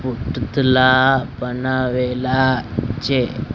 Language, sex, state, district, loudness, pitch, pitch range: Gujarati, male, Gujarat, Gandhinagar, -18 LUFS, 130 Hz, 125-130 Hz